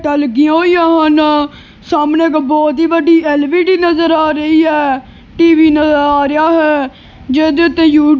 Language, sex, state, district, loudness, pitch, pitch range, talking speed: Punjabi, female, Punjab, Kapurthala, -11 LUFS, 310 Hz, 295-330 Hz, 185 wpm